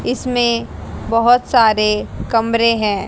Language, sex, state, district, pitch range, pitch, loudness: Hindi, female, Haryana, Jhajjar, 220-245 Hz, 230 Hz, -15 LUFS